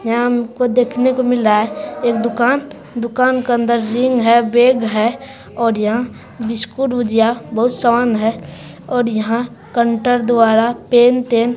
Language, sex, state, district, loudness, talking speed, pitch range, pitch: Hindi, female, Bihar, Supaul, -15 LUFS, 150 wpm, 225-245 Hz, 235 Hz